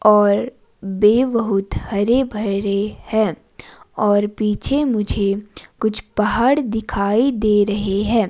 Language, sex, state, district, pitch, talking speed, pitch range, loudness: Hindi, female, Himachal Pradesh, Shimla, 210 Hz, 110 wpm, 205-225 Hz, -18 LUFS